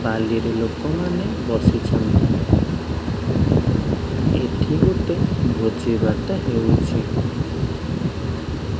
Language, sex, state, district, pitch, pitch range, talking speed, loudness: Odia, male, Odisha, Khordha, 110 Hz, 95-115 Hz, 55 wpm, -21 LUFS